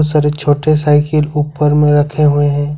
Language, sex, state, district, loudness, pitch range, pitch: Hindi, male, Jharkhand, Ranchi, -13 LUFS, 145-150 Hz, 150 Hz